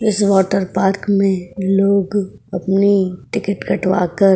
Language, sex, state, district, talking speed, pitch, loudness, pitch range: Hindi, female, Uttar Pradesh, Jyotiba Phule Nagar, 140 wpm, 195 Hz, -17 LUFS, 190-200 Hz